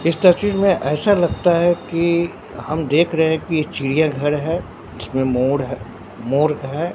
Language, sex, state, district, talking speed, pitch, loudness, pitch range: Hindi, male, Bihar, Katihar, 165 wpm, 155 Hz, -18 LUFS, 135-170 Hz